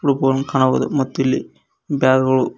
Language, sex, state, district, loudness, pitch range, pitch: Kannada, male, Karnataka, Koppal, -18 LUFS, 130-135 Hz, 130 Hz